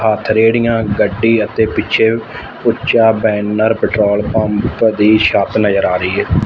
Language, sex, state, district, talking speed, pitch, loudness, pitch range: Punjabi, male, Punjab, Fazilka, 130 wpm, 110 Hz, -13 LUFS, 105-115 Hz